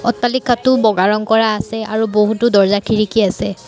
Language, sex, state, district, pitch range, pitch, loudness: Assamese, female, Assam, Sonitpur, 210-235 Hz, 220 Hz, -15 LUFS